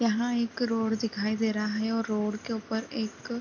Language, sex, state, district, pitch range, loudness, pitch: Hindi, female, Chhattisgarh, Raigarh, 215-235 Hz, -30 LUFS, 225 Hz